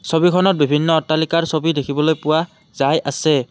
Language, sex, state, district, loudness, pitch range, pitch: Assamese, male, Assam, Kamrup Metropolitan, -17 LUFS, 145-165 Hz, 155 Hz